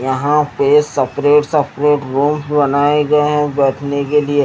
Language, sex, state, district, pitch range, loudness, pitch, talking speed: Hindi, male, Haryana, Jhajjar, 140-150 Hz, -14 LUFS, 145 Hz, 150 wpm